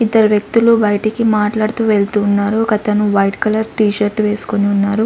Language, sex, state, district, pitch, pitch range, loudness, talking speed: Telugu, female, Andhra Pradesh, Sri Satya Sai, 210 Hz, 205-220 Hz, -14 LUFS, 155 wpm